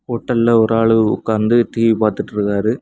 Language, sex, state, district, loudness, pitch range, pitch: Tamil, male, Tamil Nadu, Kanyakumari, -15 LUFS, 110-115 Hz, 115 Hz